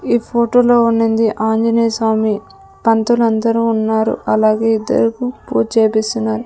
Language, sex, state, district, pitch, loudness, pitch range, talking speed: Telugu, female, Andhra Pradesh, Sri Satya Sai, 225 Hz, -15 LUFS, 220-235 Hz, 100 wpm